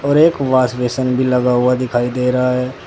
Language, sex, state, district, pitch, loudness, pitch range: Hindi, male, Uttar Pradesh, Saharanpur, 125 Hz, -15 LUFS, 125-130 Hz